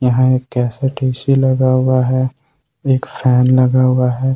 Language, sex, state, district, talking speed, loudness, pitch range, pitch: Hindi, male, Jharkhand, Ranchi, 165 wpm, -14 LUFS, 125-130 Hz, 130 Hz